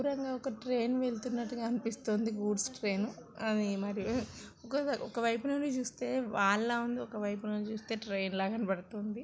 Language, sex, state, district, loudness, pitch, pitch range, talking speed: Telugu, female, Andhra Pradesh, Chittoor, -35 LUFS, 230 Hz, 210-250 Hz, 150 wpm